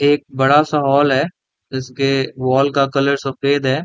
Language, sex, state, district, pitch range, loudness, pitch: Hindi, male, Chhattisgarh, Raigarh, 135-145 Hz, -16 LUFS, 140 Hz